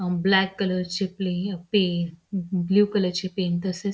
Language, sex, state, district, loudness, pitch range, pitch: Marathi, female, Maharashtra, Pune, -24 LUFS, 180-195 Hz, 185 Hz